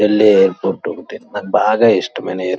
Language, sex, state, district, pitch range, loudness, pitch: Telugu, male, Andhra Pradesh, Krishna, 95-105 Hz, -14 LUFS, 105 Hz